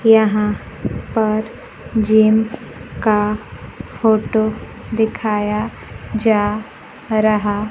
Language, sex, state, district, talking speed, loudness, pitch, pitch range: Hindi, female, Bihar, Kaimur, 60 wpm, -18 LUFS, 215 Hz, 210-220 Hz